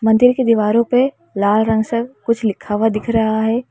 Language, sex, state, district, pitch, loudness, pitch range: Hindi, female, Uttar Pradesh, Lalitpur, 225 Hz, -16 LUFS, 220-235 Hz